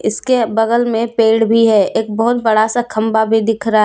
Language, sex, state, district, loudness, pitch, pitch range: Hindi, female, Jharkhand, Deoghar, -14 LUFS, 225 Hz, 220-230 Hz